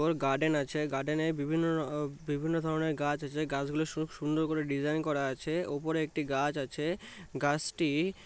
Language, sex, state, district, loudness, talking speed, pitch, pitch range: Bengali, male, West Bengal, North 24 Parganas, -32 LUFS, 175 wpm, 155 Hz, 145-160 Hz